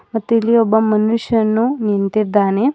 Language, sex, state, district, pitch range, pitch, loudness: Kannada, female, Karnataka, Bidar, 215-230 Hz, 220 Hz, -15 LUFS